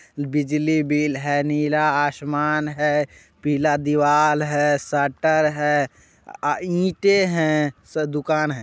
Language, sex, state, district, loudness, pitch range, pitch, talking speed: Hindi, male, Bihar, Muzaffarpur, -21 LUFS, 145-155 Hz, 150 Hz, 120 wpm